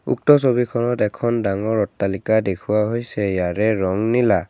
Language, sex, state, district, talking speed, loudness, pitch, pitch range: Assamese, male, Assam, Kamrup Metropolitan, 135 wpm, -19 LUFS, 105 Hz, 100-120 Hz